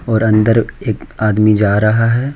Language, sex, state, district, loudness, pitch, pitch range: Hindi, male, Jharkhand, Deoghar, -13 LUFS, 110 Hz, 105-115 Hz